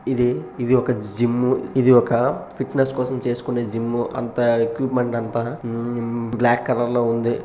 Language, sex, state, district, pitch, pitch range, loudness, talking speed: Telugu, male, Andhra Pradesh, Srikakulam, 120 Hz, 115-125 Hz, -21 LUFS, 160 wpm